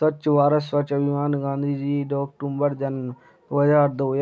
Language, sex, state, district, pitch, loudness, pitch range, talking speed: Hindi, male, Bihar, Sitamarhi, 140 Hz, -22 LUFS, 140-145 Hz, 155 wpm